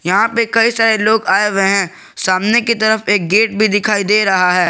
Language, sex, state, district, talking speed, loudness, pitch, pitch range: Hindi, male, Jharkhand, Garhwa, 230 wpm, -13 LUFS, 210 Hz, 195-220 Hz